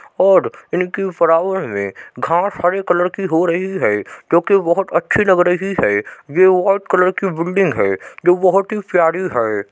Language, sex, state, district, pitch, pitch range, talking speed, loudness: Hindi, male, Uttar Pradesh, Jyotiba Phule Nagar, 180 Hz, 165-190 Hz, 180 wpm, -16 LUFS